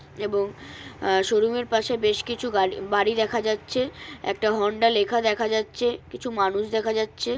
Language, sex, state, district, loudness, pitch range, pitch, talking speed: Bengali, female, West Bengal, North 24 Parganas, -24 LUFS, 205-230 Hz, 220 Hz, 160 wpm